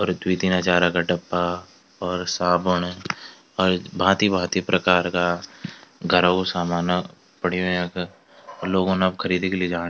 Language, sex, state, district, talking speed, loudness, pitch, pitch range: Garhwali, male, Uttarakhand, Tehri Garhwal, 135 wpm, -22 LUFS, 90 Hz, 90-95 Hz